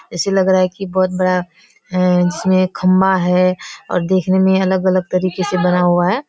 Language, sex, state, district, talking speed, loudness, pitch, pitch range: Hindi, female, Bihar, Kishanganj, 200 wpm, -15 LUFS, 185 Hz, 180-190 Hz